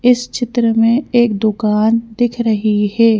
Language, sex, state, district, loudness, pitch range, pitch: Hindi, female, Madhya Pradesh, Bhopal, -15 LUFS, 215-240 Hz, 230 Hz